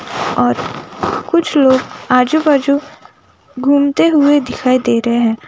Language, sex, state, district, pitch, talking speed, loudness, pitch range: Hindi, female, Uttar Pradesh, Jalaun, 285 Hz, 120 wpm, -14 LUFS, 255-310 Hz